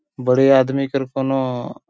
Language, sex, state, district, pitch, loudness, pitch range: Sadri, male, Chhattisgarh, Jashpur, 135 Hz, -18 LUFS, 130-135 Hz